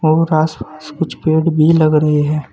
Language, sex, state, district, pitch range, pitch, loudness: Hindi, male, Uttar Pradesh, Saharanpur, 150-160 Hz, 155 Hz, -14 LUFS